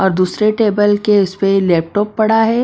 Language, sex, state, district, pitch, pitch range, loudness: Hindi, female, Maharashtra, Washim, 205 Hz, 190-215 Hz, -14 LUFS